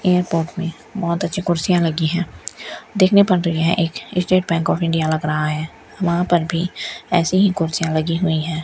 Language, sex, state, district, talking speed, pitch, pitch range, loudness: Hindi, female, Rajasthan, Bikaner, 195 wpm, 170 Hz, 165-180 Hz, -19 LUFS